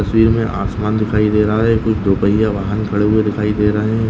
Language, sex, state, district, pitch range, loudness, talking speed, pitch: Hindi, male, Maharashtra, Nagpur, 105-110 Hz, -16 LUFS, 250 wpm, 105 Hz